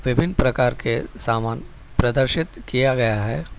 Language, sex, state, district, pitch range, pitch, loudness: Hindi, male, Telangana, Hyderabad, 115-135 Hz, 125 Hz, -21 LUFS